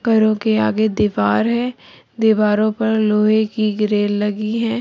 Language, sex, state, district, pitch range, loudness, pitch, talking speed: Hindi, female, Chhattisgarh, Bilaspur, 205-220 Hz, -17 LUFS, 215 Hz, 150 wpm